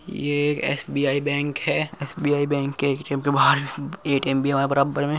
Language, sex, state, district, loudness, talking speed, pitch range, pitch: Hindi, male, Uttar Pradesh, Muzaffarnagar, -23 LUFS, 210 wpm, 140-145 Hz, 140 Hz